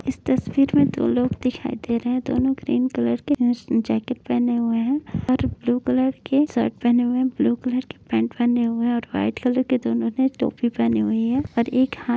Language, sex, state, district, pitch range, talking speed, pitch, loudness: Hindi, female, Uttar Pradesh, Etah, 230-260 Hz, 230 wpm, 245 Hz, -22 LUFS